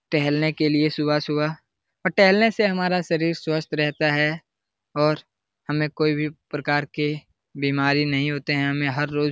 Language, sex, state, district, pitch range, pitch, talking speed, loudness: Hindi, male, Bihar, Jahanabad, 145-155 Hz, 150 Hz, 165 wpm, -22 LUFS